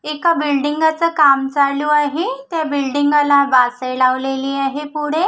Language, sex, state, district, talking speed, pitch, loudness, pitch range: Marathi, female, Maharashtra, Gondia, 150 wpm, 290 Hz, -16 LUFS, 275-305 Hz